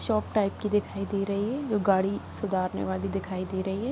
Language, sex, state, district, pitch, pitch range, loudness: Hindi, female, Jharkhand, Sahebganj, 200 Hz, 190-210 Hz, -28 LUFS